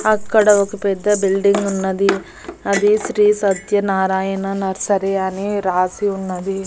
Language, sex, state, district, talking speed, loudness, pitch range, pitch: Telugu, female, Andhra Pradesh, Annamaya, 110 wpm, -17 LUFS, 190-205 Hz, 195 Hz